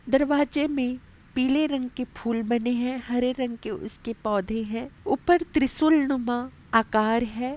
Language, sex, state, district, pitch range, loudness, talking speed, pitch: Hindi, female, Uttar Pradesh, Etah, 235-275 Hz, -25 LUFS, 150 wpm, 250 Hz